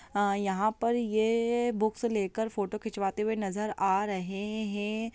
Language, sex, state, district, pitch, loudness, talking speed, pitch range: Hindi, female, Bihar, Sitamarhi, 215 Hz, -30 LUFS, 150 wpm, 200-220 Hz